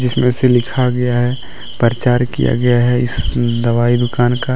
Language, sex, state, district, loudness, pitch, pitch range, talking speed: Hindi, male, Jharkhand, Deoghar, -15 LUFS, 120 Hz, 120-125 Hz, 170 wpm